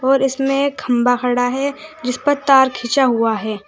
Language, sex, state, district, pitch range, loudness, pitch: Hindi, female, Uttar Pradesh, Saharanpur, 245-275 Hz, -17 LUFS, 260 Hz